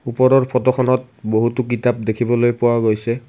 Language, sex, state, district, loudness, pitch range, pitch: Assamese, male, Assam, Kamrup Metropolitan, -17 LUFS, 115-130 Hz, 120 Hz